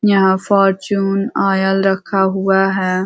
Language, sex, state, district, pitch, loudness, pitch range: Hindi, female, Uttar Pradesh, Ghazipur, 195 Hz, -15 LUFS, 190-195 Hz